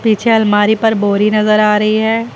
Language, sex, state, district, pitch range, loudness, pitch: Hindi, female, Uttar Pradesh, Lucknow, 210-220 Hz, -12 LUFS, 215 Hz